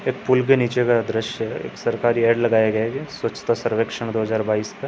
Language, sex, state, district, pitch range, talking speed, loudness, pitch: Hindi, male, Uttar Pradesh, Hamirpur, 110-120 Hz, 245 wpm, -21 LUFS, 115 Hz